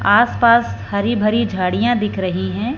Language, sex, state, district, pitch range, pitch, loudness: Hindi, female, Punjab, Fazilka, 185-230 Hz, 210 Hz, -17 LUFS